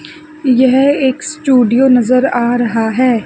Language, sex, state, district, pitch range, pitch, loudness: Hindi, female, Chandigarh, Chandigarh, 240-275 Hz, 255 Hz, -12 LUFS